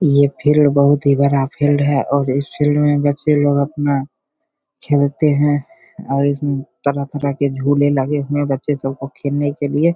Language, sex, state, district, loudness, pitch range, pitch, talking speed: Hindi, male, Bihar, Begusarai, -17 LUFS, 140-145 Hz, 145 Hz, 175 wpm